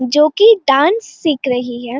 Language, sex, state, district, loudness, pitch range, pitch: Hindi, female, Uttarakhand, Uttarkashi, -13 LUFS, 255-350 Hz, 285 Hz